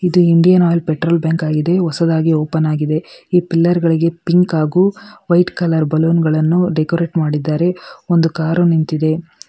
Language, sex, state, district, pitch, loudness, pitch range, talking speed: Kannada, female, Karnataka, Bangalore, 165 Hz, -15 LUFS, 160-175 Hz, 140 wpm